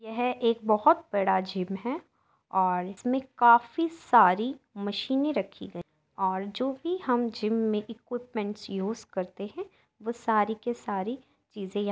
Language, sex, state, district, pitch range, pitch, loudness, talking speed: Hindi, female, Uttar Pradesh, Jyotiba Phule Nagar, 200-250 Hz, 225 Hz, -28 LUFS, 135 wpm